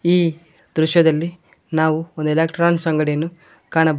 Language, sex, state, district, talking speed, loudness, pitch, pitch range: Kannada, male, Karnataka, Koppal, 105 wpm, -19 LUFS, 160 Hz, 155-170 Hz